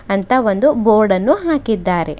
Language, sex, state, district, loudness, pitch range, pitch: Kannada, female, Karnataka, Bidar, -15 LUFS, 195-280 Hz, 220 Hz